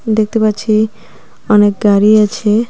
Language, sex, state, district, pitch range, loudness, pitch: Bengali, female, West Bengal, Cooch Behar, 210-220 Hz, -12 LUFS, 215 Hz